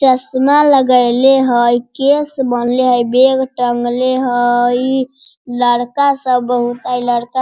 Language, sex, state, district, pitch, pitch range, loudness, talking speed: Hindi, female, Bihar, Sitamarhi, 250 Hz, 245-265 Hz, -13 LUFS, 120 wpm